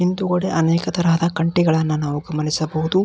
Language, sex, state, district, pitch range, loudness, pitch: Kannada, male, Karnataka, Belgaum, 155-175 Hz, -19 LUFS, 165 Hz